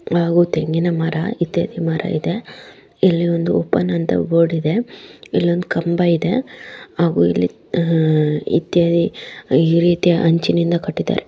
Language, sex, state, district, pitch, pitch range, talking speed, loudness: Kannada, female, Karnataka, Dharwad, 170 Hz, 165-175 Hz, 115 wpm, -17 LUFS